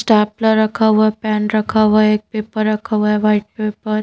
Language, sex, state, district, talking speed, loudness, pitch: Hindi, female, Madhya Pradesh, Bhopal, 225 wpm, -16 LUFS, 215 Hz